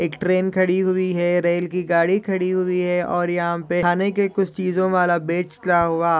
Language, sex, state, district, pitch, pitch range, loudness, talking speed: Hindi, male, Maharashtra, Solapur, 180 Hz, 175-185 Hz, -20 LUFS, 205 wpm